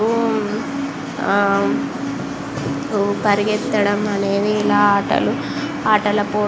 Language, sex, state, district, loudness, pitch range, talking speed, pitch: Telugu, female, Andhra Pradesh, Visakhapatnam, -19 LUFS, 205-220 Hz, 85 wpm, 210 Hz